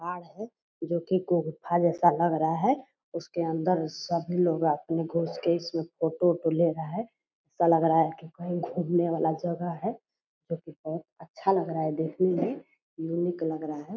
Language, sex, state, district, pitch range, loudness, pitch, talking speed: Hindi, female, Bihar, Purnia, 160-175 Hz, -28 LUFS, 170 Hz, 195 wpm